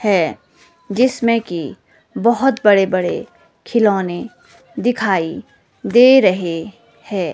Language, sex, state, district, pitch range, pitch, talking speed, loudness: Hindi, female, Himachal Pradesh, Shimla, 185-240 Hz, 215 Hz, 90 wpm, -16 LUFS